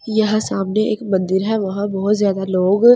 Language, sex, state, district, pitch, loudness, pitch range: Hindi, female, Delhi, New Delhi, 205 Hz, -18 LUFS, 195-215 Hz